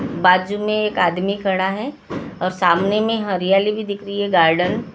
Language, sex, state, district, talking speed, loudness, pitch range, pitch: Hindi, female, Maharashtra, Gondia, 180 wpm, -18 LUFS, 185-210 Hz, 195 Hz